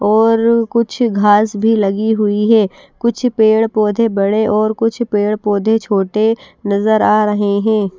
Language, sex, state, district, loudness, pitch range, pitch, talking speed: Hindi, female, Bihar, West Champaran, -14 LUFS, 205-225 Hz, 215 Hz, 150 wpm